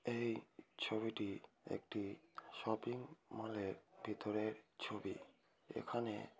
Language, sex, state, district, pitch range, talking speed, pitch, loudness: Bengali, female, West Bengal, Kolkata, 105-115 Hz, 75 wpm, 110 Hz, -46 LUFS